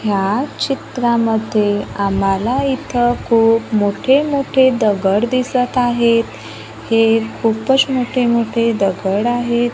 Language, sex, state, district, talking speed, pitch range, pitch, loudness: Marathi, female, Maharashtra, Gondia, 90 wpm, 205-250 Hz, 230 Hz, -16 LUFS